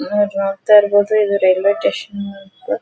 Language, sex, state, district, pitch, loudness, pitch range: Kannada, female, Karnataka, Dharwad, 200 Hz, -15 LUFS, 195-205 Hz